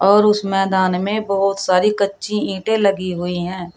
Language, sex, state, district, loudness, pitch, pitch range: Hindi, female, Uttar Pradesh, Shamli, -18 LUFS, 195 Hz, 185-205 Hz